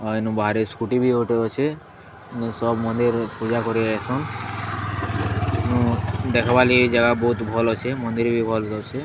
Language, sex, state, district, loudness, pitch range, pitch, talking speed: Odia, male, Odisha, Sambalpur, -22 LUFS, 110-120 Hz, 115 Hz, 135 wpm